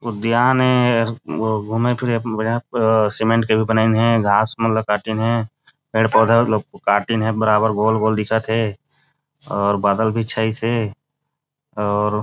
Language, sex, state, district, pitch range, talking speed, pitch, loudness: Chhattisgarhi, male, Chhattisgarh, Raigarh, 110-120 Hz, 145 wpm, 110 Hz, -18 LUFS